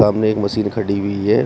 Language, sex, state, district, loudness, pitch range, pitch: Hindi, male, Uttar Pradesh, Shamli, -18 LUFS, 100-110 Hz, 105 Hz